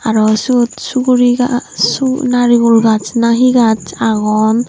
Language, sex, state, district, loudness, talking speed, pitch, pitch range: Chakma, female, Tripura, Unakoti, -12 LUFS, 140 wpm, 235 Hz, 220-250 Hz